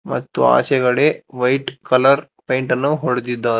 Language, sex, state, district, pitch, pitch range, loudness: Kannada, male, Karnataka, Bangalore, 130 Hz, 125-135 Hz, -17 LUFS